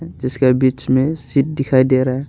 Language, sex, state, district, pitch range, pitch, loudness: Hindi, male, Arunachal Pradesh, Longding, 130-140 Hz, 130 Hz, -16 LUFS